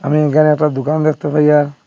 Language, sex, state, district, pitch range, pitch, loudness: Bengali, male, Assam, Hailakandi, 145-150 Hz, 150 Hz, -14 LUFS